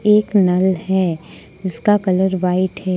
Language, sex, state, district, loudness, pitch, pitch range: Hindi, female, Jharkhand, Ranchi, -17 LUFS, 185 Hz, 180-195 Hz